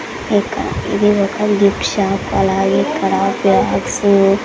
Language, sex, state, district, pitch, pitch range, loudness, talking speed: Telugu, female, Andhra Pradesh, Sri Satya Sai, 200 Hz, 195-205 Hz, -15 LUFS, 110 wpm